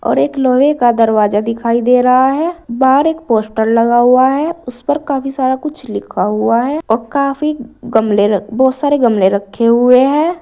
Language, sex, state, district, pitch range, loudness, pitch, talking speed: Hindi, female, Uttar Pradesh, Saharanpur, 230-280 Hz, -13 LUFS, 250 Hz, 185 wpm